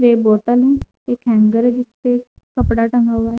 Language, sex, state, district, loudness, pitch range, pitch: Hindi, female, Uttar Pradesh, Saharanpur, -14 LUFS, 230-245 Hz, 240 Hz